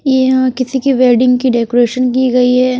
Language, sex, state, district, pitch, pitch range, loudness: Hindi, female, Chhattisgarh, Raipur, 255 Hz, 250-260 Hz, -12 LUFS